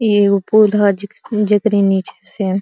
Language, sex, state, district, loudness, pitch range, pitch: Bhojpuri, female, Uttar Pradesh, Deoria, -15 LUFS, 195-210 Hz, 205 Hz